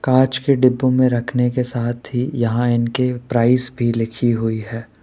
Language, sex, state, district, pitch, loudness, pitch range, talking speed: Hindi, male, Rajasthan, Jaipur, 120 Hz, -18 LUFS, 115-130 Hz, 180 wpm